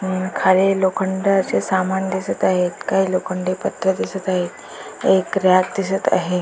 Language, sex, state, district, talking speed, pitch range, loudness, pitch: Marathi, female, Maharashtra, Dhule, 140 wpm, 185-190 Hz, -19 LUFS, 190 Hz